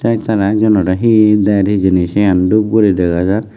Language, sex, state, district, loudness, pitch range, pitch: Chakma, male, Tripura, West Tripura, -12 LUFS, 95-110 Hz, 105 Hz